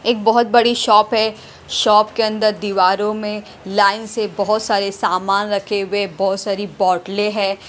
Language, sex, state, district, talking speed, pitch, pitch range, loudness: Hindi, female, Punjab, Pathankot, 165 wpm, 205 Hz, 195-215 Hz, -17 LUFS